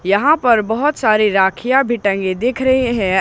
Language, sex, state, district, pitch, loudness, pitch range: Hindi, male, Jharkhand, Ranchi, 225 Hz, -15 LUFS, 200-260 Hz